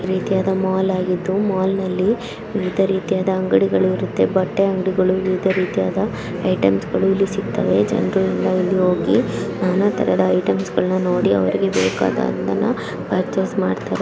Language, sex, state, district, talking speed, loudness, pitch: Kannada, female, Karnataka, Chamarajanagar, 140 wpm, -19 LUFS, 185 Hz